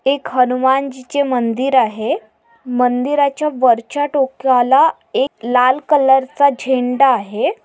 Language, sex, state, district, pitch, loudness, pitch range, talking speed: Marathi, female, Maharashtra, Pune, 260 Hz, -15 LUFS, 245-275 Hz, 110 wpm